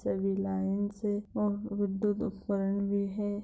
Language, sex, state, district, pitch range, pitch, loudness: Hindi, female, Bihar, Madhepura, 195-210 Hz, 205 Hz, -32 LUFS